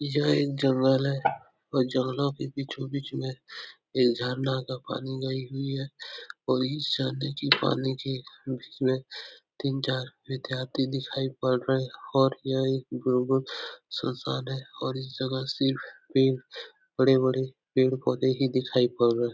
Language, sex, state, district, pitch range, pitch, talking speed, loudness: Hindi, male, Uttar Pradesh, Etah, 130-135 Hz, 130 Hz, 145 wpm, -28 LUFS